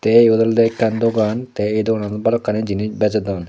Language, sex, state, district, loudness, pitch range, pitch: Chakma, male, Tripura, Dhalai, -17 LUFS, 105-115 Hz, 110 Hz